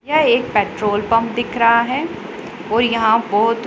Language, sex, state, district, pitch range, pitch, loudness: Hindi, female, Punjab, Pathankot, 220-240 Hz, 230 Hz, -17 LUFS